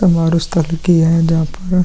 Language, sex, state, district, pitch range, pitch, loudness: Hindi, male, Bihar, Vaishali, 165-180 Hz, 165 Hz, -14 LUFS